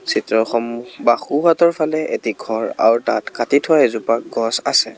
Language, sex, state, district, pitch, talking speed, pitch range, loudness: Assamese, male, Assam, Kamrup Metropolitan, 120 Hz, 145 wpm, 115-155 Hz, -17 LUFS